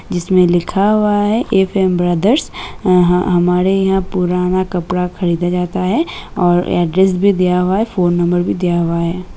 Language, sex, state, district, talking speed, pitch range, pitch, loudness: Hindi, female, Uttar Pradesh, Jalaun, 185 wpm, 175-190 Hz, 180 Hz, -14 LUFS